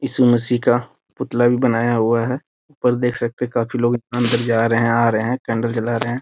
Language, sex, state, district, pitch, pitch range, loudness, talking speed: Hindi, male, Bihar, Muzaffarpur, 120 Hz, 115-125 Hz, -18 LUFS, 240 wpm